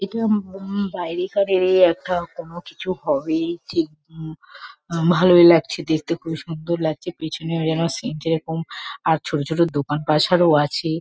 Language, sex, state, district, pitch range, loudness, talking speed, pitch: Bengali, female, West Bengal, Kolkata, 160-180 Hz, -20 LUFS, 145 wpm, 170 Hz